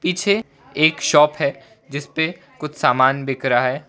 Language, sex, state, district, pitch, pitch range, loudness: Hindi, male, Gujarat, Valsad, 145 Hz, 135-160 Hz, -18 LUFS